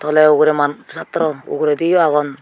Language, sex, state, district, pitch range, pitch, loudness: Chakma, female, Tripura, Unakoti, 145-155 Hz, 150 Hz, -15 LUFS